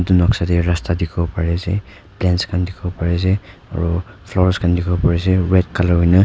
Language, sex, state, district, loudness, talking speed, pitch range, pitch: Nagamese, male, Nagaland, Kohima, -18 LUFS, 200 wpm, 85-95 Hz, 90 Hz